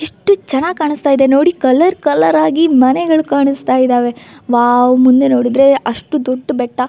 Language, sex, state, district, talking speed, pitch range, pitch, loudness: Kannada, female, Karnataka, Gulbarga, 150 wpm, 250-305 Hz, 270 Hz, -12 LUFS